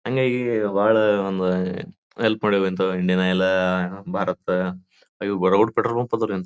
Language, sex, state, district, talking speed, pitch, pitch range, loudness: Kannada, male, Karnataka, Bijapur, 110 wpm, 95 Hz, 95-110 Hz, -22 LUFS